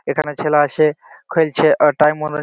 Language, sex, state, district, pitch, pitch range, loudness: Bengali, male, West Bengal, Malda, 150 Hz, 150-155 Hz, -16 LUFS